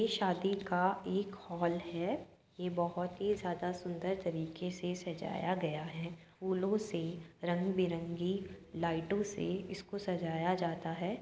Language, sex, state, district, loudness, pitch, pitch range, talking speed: Hindi, female, Uttar Pradesh, Jyotiba Phule Nagar, -37 LUFS, 180 Hz, 170-190 Hz, 140 wpm